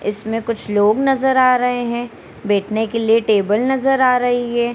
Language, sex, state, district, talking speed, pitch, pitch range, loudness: Hindi, female, Bihar, Darbhanga, 190 wpm, 235 Hz, 215-250 Hz, -17 LUFS